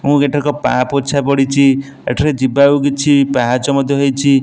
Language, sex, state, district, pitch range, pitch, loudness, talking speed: Odia, male, Odisha, Nuapada, 135-140 Hz, 140 Hz, -14 LUFS, 110 wpm